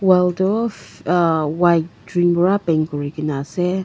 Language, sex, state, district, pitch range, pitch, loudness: Nagamese, female, Nagaland, Kohima, 155-185 Hz, 175 Hz, -19 LUFS